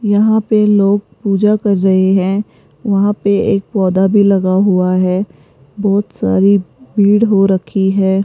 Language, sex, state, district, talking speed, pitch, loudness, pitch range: Hindi, female, Rajasthan, Jaipur, 155 wpm, 200 Hz, -13 LUFS, 190-205 Hz